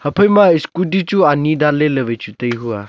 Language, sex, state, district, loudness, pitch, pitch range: Wancho, male, Arunachal Pradesh, Longding, -14 LUFS, 150 Hz, 120-180 Hz